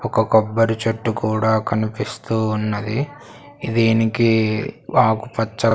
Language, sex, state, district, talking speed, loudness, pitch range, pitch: Telugu, male, Andhra Pradesh, Sri Satya Sai, 95 wpm, -19 LUFS, 110-115 Hz, 110 Hz